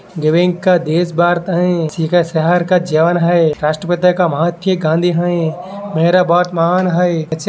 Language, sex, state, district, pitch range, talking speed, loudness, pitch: Hindi, male, Maharashtra, Sindhudurg, 165-180 Hz, 150 wpm, -14 LUFS, 175 Hz